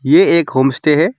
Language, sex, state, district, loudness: Hindi, male, West Bengal, Alipurduar, -13 LUFS